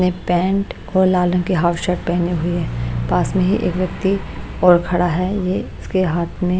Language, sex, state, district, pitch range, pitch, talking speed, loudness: Hindi, female, Bihar, Patna, 175-185 Hz, 180 Hz, 210 wpm, -18 LUFS